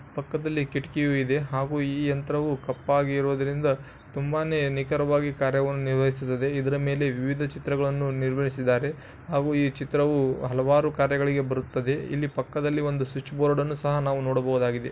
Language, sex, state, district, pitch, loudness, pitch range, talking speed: Kannada, male, Karnataka, Bijapur, 140 Hz, -26 LUFS, 135-145 Hz, 125 wpm